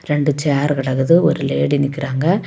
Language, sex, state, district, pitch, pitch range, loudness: Tamil, female, Tamil Nadu, Kanyakumari, 145 Hz, 140-160 Hz, -17 LUFS